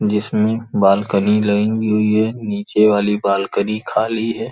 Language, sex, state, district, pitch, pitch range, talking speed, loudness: Hindi, male, Uttar Pradesh, Gorakhpur, 105 Hz, 105-110 Hz, 135 wpm, -17 LUFS